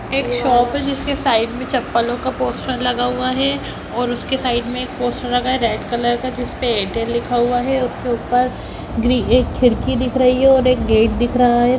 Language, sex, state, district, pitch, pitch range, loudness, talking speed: Hindi, female, Bihar, Jamui, 245 Hz, 240-255 Hz, -18 LUFS, 215 wpm